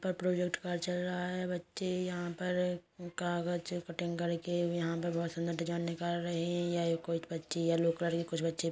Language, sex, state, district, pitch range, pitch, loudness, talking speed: Hindi, female, Uttar Pradesh, Hamirpur, 170-180 Hz, 175 Hz, -35 LUFS, 195 wpm